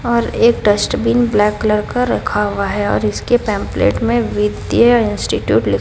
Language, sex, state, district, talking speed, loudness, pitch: Hindi, female, Odisha, Sambalpur, 165 wpm, -15 LUFS, 210 Hz